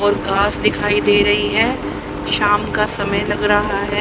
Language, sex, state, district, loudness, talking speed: Hindi, female, Haryana, Rohtak, -17 LUFS, 180 wpm